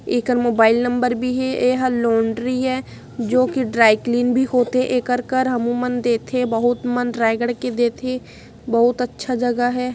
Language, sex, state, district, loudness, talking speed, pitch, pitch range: Hindi, female, Chhattisgarh, Raigarh, -19 LUFS, 165 wpm, 245 Hz, 240-255 Hz